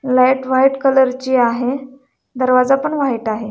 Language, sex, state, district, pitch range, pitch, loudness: Marathi, female, Maharashtra, Dhule, 255-270 Hz, 260 Hz, -15 LUFS